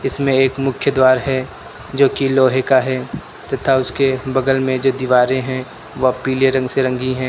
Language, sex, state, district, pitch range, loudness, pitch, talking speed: Hindi, male, Uttar Pradesh, Lucknow, 130-135 Hz, -16 LUFS, 130 Hz, 180 wpm